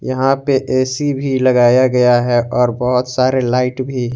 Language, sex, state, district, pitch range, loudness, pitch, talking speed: Hindi, male, Jharkhand, Garhwa, 125-130 Hz, -14 LUFS, 130 Hz, 175 wpm